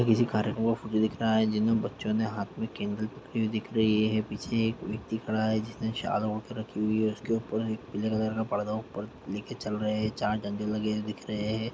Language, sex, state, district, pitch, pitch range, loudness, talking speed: Hindi, male, Bihar, Jamui, 110 Hz, 105-110 Hz, -30 LUFS, 245 wpm